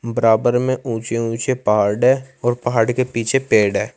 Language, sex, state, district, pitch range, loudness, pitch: Hindi, male, Uttar Pradesh, Saharanpur, 115-130 Hz, -18 LUFS, 120 Hz